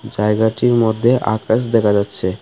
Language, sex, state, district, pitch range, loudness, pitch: Bengali, male, Tripura, West Tripura, 105-115 Hz, -16 LUFS, 110 Hz